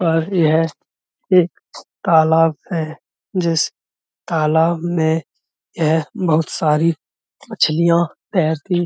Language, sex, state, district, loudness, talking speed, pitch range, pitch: Hindi, male, Uttar Pradesh, Budaun, -18 LUFS, 95 wpm, 155-170 Hz, 160 Hz